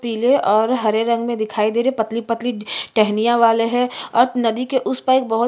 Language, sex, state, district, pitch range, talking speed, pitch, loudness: Hindi, female, Chhattisgarh, Jashpur, 220-245 Hz, 220 wpm, 235 Hz, -18 LUFS